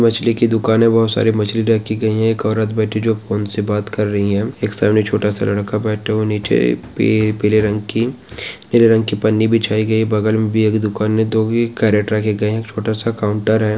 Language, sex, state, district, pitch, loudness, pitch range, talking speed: Hindi, male, Chhattisgarh, Sukma, 110 Hz, -16 LUFS, 105-110 Hz, 240 wpm